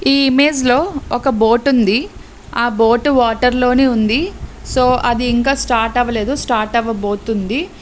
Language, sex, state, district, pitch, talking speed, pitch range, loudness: Telugu, female, Telangana, Karimnagar, 245 Hz, 140 wpm, 230-270 Hz, -15 LUFS